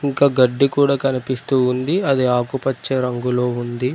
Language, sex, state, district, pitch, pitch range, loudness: Telugu, male, Telangana, Mahabubabad, 130 Hz, 125-140 Hz, -18 LUFS